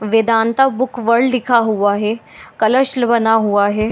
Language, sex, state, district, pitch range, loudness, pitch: Hindi, female, Jharkhand, Jamtara, 215-250 Hz, -15 LUFS, 225 Hz